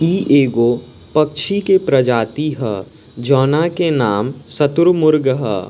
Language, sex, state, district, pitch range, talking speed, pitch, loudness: Bhojpuri, male, Bihar, East Champaran, 120-155 Hz, 115 wpm, 140 Hz, -15 LUFS